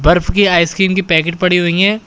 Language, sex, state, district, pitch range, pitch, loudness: Hindi, male, Uttar Pradesh, Shamli, 170-195 Hz, 180 Hz, -12 LUFS